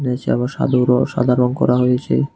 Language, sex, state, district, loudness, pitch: Bengali, male, Tripura, West Tripura, -17 LUFS, 125 Hz